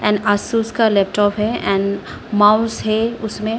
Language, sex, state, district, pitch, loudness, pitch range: Hindi, female, Arunachal Pradesh, Lower Dibang Valley, 215 Hz, -17 LUFS, 205-225 Hz